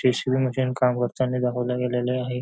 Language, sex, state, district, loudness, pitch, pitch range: Marathi, male, Maharashtra, Nagpur, -24 LUFS, 125 Hz, 125-130 Hz